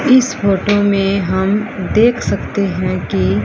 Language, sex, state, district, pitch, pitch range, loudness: Hindi, female, Haryana, Rohtak, 195 Hz, 185-205 Hz, -15 LUFS